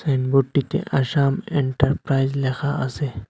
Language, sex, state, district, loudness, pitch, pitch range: Bengali, male, Assam, Hailakandi, -21 LUFS, 135 Hz, 130-145 Hz